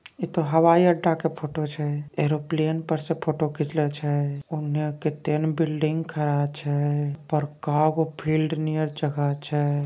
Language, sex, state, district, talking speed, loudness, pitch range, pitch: Angika, female, Bihar, Begusarai, 165 wpm, -25 LUFS, 145-160 Hz, 155 Hz